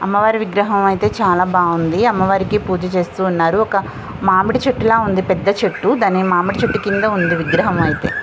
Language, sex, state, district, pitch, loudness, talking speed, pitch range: Telugu, female, Andhra Pradesh, Visakhapatnam, 195 Hz, -16 LUFS, 165 wpm, 180-210 Hz